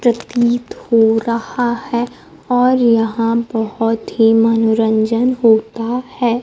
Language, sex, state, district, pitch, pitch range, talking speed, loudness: Hindi, female, Bihar, Kaimur, 230 Hz, 225-240 Hz, 105 wpm, -15 LUFS